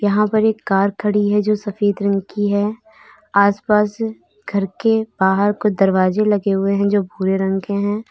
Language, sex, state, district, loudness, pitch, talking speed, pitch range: Hindi, female, Uttar Pradesh, Lalitpur, -18 LUFS, 205 Hz, 185 wpm, 195-210 Hz